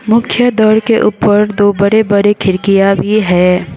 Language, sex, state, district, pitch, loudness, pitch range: Hindi, female, Sikkim, Gangtok, 205 Hz, -10 LUFS, 195-220 Hz